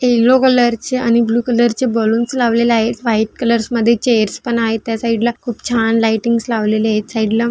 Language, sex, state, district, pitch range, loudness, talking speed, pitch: Marathi, female, Maharashtra, Dhule, 225-240 Hz, -15 LUFS, 215 wpm, 235 Hz